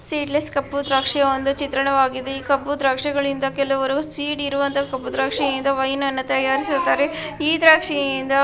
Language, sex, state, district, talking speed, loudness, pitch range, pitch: Kannada, female, Karnataka, Dakshina Kannada, 100 wpm, -20 LUFS, 270-285 Hz, 275 Hz